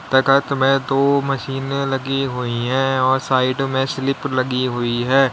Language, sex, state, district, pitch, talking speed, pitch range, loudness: Hindi, male, Uttar Pradesh, Lalitpur, 135 Hz, 170 wpm, 130-135 Hz, -19 LUFS